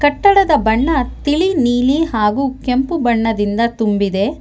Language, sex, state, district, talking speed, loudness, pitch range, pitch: Kannada, female, Karnataka, Bangalore, 110 wpm, -15 LUFS, 225-295 Hz, 255 Hz